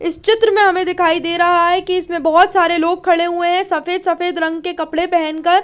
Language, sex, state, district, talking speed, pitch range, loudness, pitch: Hindi, female, Chandigarh, Chandigarh, 245 wpm, 335-360 Hz, -15 LUFS, 350 Hz